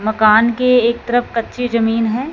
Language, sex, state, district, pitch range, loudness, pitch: Hindi, female, Punjab, Fazilka, 225-245 Hz, -15 LUFS, 235 Hz